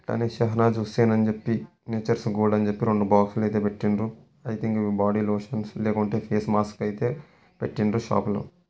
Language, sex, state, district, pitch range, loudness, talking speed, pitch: Telugu, male, Telangana, Karimnagar, 105-115 Hz, -25 LUFS, 150 wpm, 110 Hz